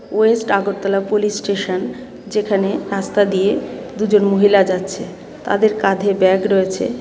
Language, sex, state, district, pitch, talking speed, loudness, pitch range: Bengali, female, Tripura, West Tripura, 200 Hz, 120 wpm, -17 LUFS, 195-210 Hz